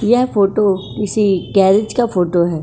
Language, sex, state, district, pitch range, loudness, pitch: Hindi, female, Uttar Pradesh, Etah, 190-215 Hz, -15 LUFS, 200 Hz